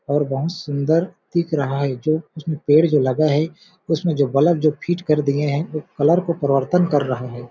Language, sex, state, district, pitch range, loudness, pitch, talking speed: Hindi, male, Chhattisgarh, Balrampur, 140-165 Hz, -20 LUFS, 155 Hz, 215 wpm